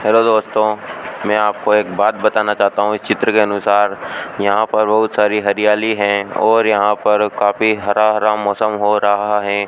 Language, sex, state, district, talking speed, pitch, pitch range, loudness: Hindi, male, Rajasthan, Bikaner, 180 wpm, 105 Hz, 100-110 Hz, -15 LUFS